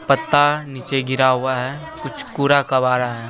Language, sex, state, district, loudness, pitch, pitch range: Hindi, female, Bihar, West Champaran, -18 LUFS, 135 Hz, 130-145 Hz